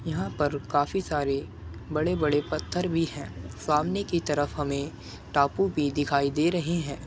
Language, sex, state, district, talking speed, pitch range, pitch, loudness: Hindi, male, Uttar Pradesh, Muzaffarnagar, 155 wpm, 140-165 Hz, 145 Hz, -27 LUFS